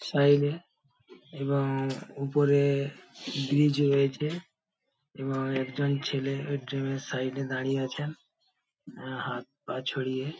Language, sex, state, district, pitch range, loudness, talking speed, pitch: Bengali, male, West Bengal, Paschim Medinipur, 135-145 Hz, -29 LUFS, 110 wpm, 140 Hz